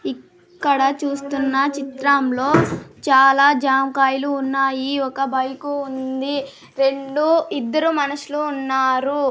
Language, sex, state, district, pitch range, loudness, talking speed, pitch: Telugu, female, Andhra Pradesh, Sri Satya Sai, 265-285 Hz, -19 LUFS, 90 wpm, 275 Hz